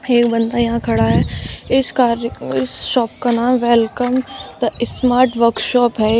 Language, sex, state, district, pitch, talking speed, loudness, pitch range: Hindi, female, Uttar Pradesh, Shamli, 240 Hz, 155 wpm, -16 LUFS, 230-250 Hz